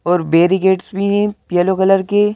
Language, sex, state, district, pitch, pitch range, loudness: Hindi, male, Madhya Pradesh, Bhopal, 190 Hz, 180-200 Hz, -15 LUFS